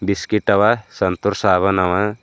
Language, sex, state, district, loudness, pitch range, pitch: Kannada, male, Karnataka, Bidar, -17 LUFS, 90-105 Hz, 100 Hz